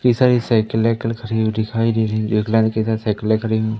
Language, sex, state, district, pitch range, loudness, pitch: Hindi, male, Madhya Pradesh, Umaria, 110-115 Hz, -18 LUFS, 110 Hz